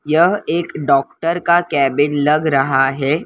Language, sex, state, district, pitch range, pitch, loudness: Hindi, female, Maharashtra, Mumbai Suburban, 140-165 Hz, 150 Hz, -16 LUFS